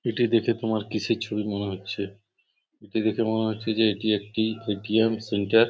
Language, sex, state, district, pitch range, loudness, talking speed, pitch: Bengali, male, West Bengal, Purulia, 105-115 Hz, -26 LUFS, 180 wpm, 110 Hz